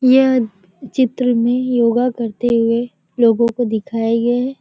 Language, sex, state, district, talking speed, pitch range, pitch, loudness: Hindi, female, Uttar Pradesh, Varanasi, 145 wpm, 230-250 Hz, 240 Hz, -16 LUFS